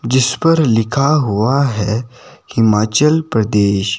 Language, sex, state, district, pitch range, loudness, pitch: Hindi, male, Himachal Pradesh, Shimla, 105-140 Hz, -14 LUFS, 115 Hz